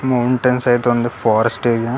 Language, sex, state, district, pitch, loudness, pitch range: Telugu, male, Andhra Pradesh, Krishna, 120 Hz, -16 LUFS, 115-125 Hz